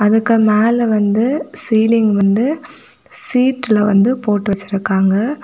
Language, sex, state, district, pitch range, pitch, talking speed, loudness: Tamil, female, Tamil Nadu, Kanyakumari, 205-250 Hz, 220 Hz, 100 wpm, -14 LUFS